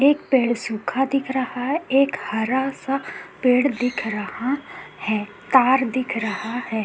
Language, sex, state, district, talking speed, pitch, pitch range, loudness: Hindi, female, Bihar, Vaishali, 150 wpm, 250 Hz, 220-270 Hz, -22 LUFS